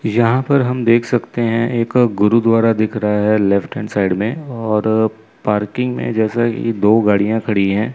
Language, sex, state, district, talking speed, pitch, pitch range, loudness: Hindi, male, Chandigarh, Chandigarh, 180 wpm, 110 Hz, 105-120 Hz, -16 LUFS